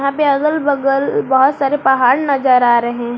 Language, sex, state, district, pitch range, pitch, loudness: Hindi, female, Jharkhand, Garhwa, 250-280 Hz, 275 Hz, -14 LUFS